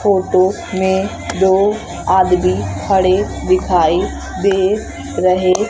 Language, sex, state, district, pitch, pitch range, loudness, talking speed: Hindi, female, Madhya Pradesh, Umaria, 190 Hz, 185-200 Hz, -15 LUFS, 85 wpm